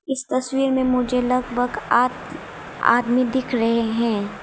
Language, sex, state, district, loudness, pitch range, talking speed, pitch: Hindi, female, Arunachal Pradesh, Lower Dibang Valley, -21 LUFS, 235-255 Hz, 135 wpm, 250 Hz